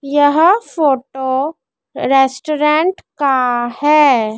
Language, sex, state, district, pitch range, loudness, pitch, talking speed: Hindi, female, Madhya Pradesh, Dhar, 260-305 Hz, -14 LUFS, 285 Hz, 70 wpm